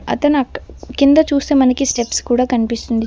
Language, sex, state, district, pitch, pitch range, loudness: Telugu, female, Telangana, Mahabubabad, 260 Hz, 240-280 Hz, -15 LUFS